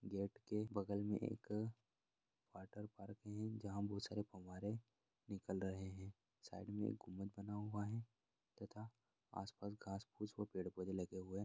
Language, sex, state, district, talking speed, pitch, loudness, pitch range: Hindi, male, Bihar, Araria, 155 wpm, 105 Hz, -49 LUFS, 95-110 Hz